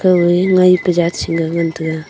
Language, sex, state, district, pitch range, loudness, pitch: Wancho, female, Arunachal Pradesh, Longding, 165-180 Hz, -14 LUFS, 170 Hz